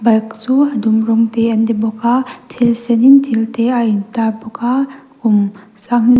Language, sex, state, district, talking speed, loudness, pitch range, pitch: Mizo, female, Mizoram, Aizawl, 220 wpm, -14 LUFS, 220-245 Hz, 230 Hz